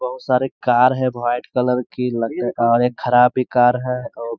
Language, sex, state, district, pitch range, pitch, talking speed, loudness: Hindi, male, Bihar, Gaya, 120-125 Hz, 125 Hz, 230 wpm, -18 LUFS